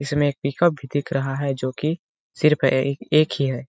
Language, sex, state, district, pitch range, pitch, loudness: Hindi, male, Chhattisgarh, Balrampur, 135-150 Hz, 140 Hz, -22 LUFS